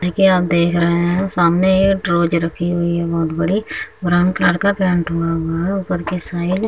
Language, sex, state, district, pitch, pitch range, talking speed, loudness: Hindi, female, Uttar Pradesh, Muzaffarnagar, 175 Hz, 170-185 Hz, 225 wpm, -17 LUFS